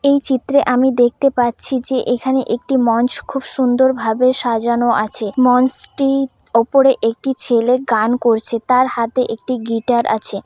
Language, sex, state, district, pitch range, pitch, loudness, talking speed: Bengali, female, West Bengal, Dakshin Dinajpur, 235-265 Hz, 250 Hz, -15 LUFS, 145 wpm